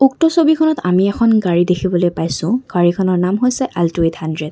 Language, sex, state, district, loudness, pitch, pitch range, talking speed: Assamese, female, Assam, Kamrup Metropolitan, -15 LUFS, 185 Hz, 175-250 Hz, 185 wpm